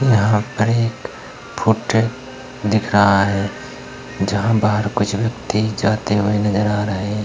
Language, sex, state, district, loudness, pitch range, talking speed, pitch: Hindi, male, Uttar Pradesh, Etah, -18 LUFS, 105-115 Hz, 140 wpm, 105 Hz